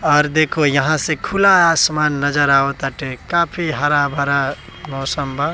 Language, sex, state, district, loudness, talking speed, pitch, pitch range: Bhojpuri, male, Bihar, East Champaran, -16 LUFS, 140 wpm, 145 Hz, 140-155 Hz